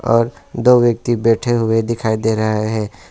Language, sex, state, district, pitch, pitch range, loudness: Hindi, male, West Bengal, Alipurduar, 115 Hz, 110-120 Hz, -16 LUFS